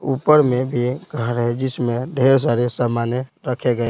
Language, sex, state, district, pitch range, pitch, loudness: Hindi, male, Bihar, Patna, 120-135 Hz, 125 Hz, -19 LUFS